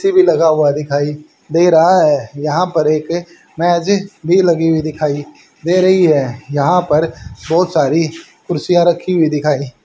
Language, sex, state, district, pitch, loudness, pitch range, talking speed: Hindi, male, Haryana, Jhajjar, 160 Hz, -14 LUFS, 150-175 Hz, 160 wpm